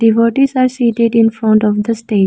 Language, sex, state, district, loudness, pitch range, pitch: English, female, Arunachal Pradesh, Lower Dibang Valley, -13 LUFS, 220-235 Hz, 230 Hz